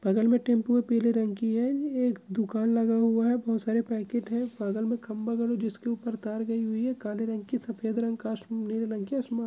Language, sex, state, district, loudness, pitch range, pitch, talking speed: Hindi, female, Andhra Pradesh, Krishna, -29 LUFS, 220-235 Hz, 230 Hz, 195 wpm